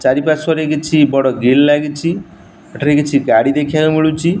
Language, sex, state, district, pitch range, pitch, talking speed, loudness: Odia, male, Odisha, Nuapada, 140-155 Hz, 150 Hz, 135 wpm, -13 LUFS